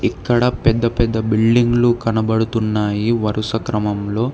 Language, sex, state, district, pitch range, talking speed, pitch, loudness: Telugu, male, Telangana, Hyderabad, 110-120 Hz, 95 wpm, 115 Hz, -17 LUFS